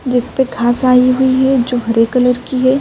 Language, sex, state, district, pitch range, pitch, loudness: Urdu, female, Uttar Pradesh, Budaun, 245-260 Hz, 250 Hz, -13 LUFS